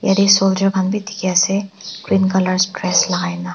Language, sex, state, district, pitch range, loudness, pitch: Nagamese, female, Nagaland, Dimapur, 185-195 Hz, -16 LUFS, 190 Hz